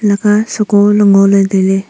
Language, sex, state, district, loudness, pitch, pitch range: Wancho, female, Arunachal Pradesh, Longding, -10 LUFS, 205 Hz, 195-210 Hz